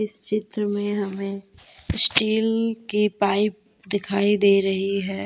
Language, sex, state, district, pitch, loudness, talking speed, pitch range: Hindi, female, Jharkhand, Deoghar, 205 Hz, -21 LUFS, 125 wpm, 195-215 Hz